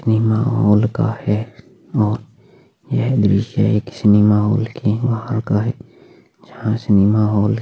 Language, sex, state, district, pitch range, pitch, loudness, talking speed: Hindi, male, Maharashtra, Aurangabad, 105-120 Hz, 110 Hz, -17 LUFS, 140 wpm